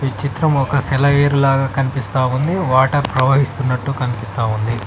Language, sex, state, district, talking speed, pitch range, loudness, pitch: Telugu, male, Telangana, Mahabubabad, 135 wpm, 125-140 Hz, -17 LUFS, 135 Hz